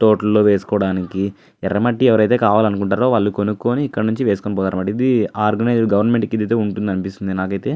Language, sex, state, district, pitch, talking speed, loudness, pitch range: Telugu, male, Andhra Pradesh, Anantapur, 105 Hz, 170 wpm, -17 LUFS, 100-115 Hz